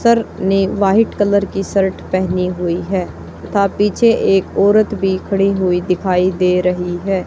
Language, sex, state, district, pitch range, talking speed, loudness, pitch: Hindi, female, Haryana, Charkhi Dadri, 180-200 Hz, 165 wpm, -15 LUFS, 195 Hz